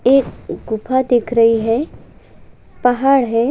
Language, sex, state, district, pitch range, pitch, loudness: Hindi, female, Chhattisgarh, Kabirdham, 230-260 Hz, 245 Hz, -16 LUFS